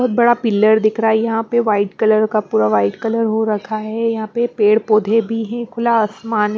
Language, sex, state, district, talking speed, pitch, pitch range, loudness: Hindi, female, Punjab, Pathankot, 235 wpm, 220 Hz, 215-230 Hz, -16 LUFS